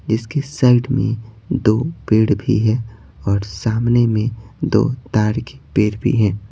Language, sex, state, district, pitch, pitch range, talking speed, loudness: Hindi, male, Bihar, Patna, 110 Hz, 110-125 Hz, 145 wpm, -18 LUFS